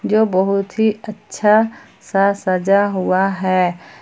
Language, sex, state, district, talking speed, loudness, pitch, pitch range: Hindi, female, Jharkhand, Palamu, 120 wpm, -17 LUFS, 200 Hz, 190-210 Hz